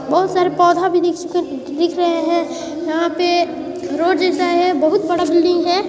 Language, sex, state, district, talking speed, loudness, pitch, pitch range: Hindi, female, Chhattisgarh, Sarguja, 165 wpm, -17 LUFS, 345 Hz, 330-350 Hz